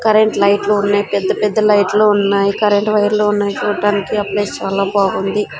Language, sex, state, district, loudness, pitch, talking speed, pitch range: Telugu, female, Andhra Pradesh, Sri Satya Sai, -15 LUFS, 205 Hz, 190 wpm, 200-210 Hz